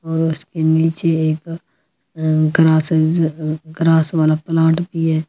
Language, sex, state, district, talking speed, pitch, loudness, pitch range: Hindi, female, Delhi, New Delhi, 115 wpm, 160 Hz, -17 LUFS, 155-165 Hz